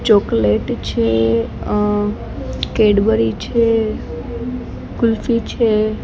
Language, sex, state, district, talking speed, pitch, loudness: Gujarati, female, Gujarat, Gandhinagar, 70 wpm, 210 Hz, -17 LUFS